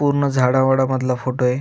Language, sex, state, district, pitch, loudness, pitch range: Marathi, male, Maharashtra, Aurangabad, 130 Hz, -18 LUFS, 125-135 Hz